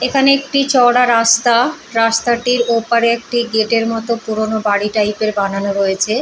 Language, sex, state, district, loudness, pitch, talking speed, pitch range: Bengali, female, West Bengal, Purulia, -14 LUFS, 230 Hz, 145 wpm, 220-240 Hz